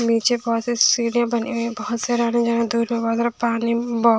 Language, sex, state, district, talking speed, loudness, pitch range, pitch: Hindi, female, Bihar, West Champaran, 115 wpm, -20 LUFS, 230-240 Hz, 235 Hz